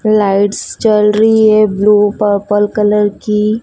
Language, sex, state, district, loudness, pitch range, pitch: Hindi, female, Madhya Pradesh, Dhar, -11 LUFS, 205-215 Hz, 210 Hz